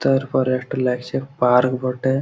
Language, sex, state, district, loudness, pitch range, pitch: Bengali, male, West Bengal, Malda, -20 LUFS, 125-135 Hz, 130 Hz